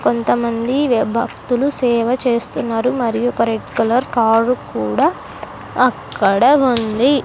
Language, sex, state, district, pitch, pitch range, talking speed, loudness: Telugu, female, Andhra Pradesh, Sri Satya Sai, 235 Hz, 230-250 Hz, 100 wpm, -16 LUFS